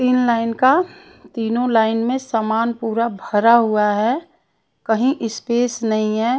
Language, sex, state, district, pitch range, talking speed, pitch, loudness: Hindi, female, Punjab, Pathankot, 225-255 Hz, 140 wpm, 235 Hz, -18 LUFS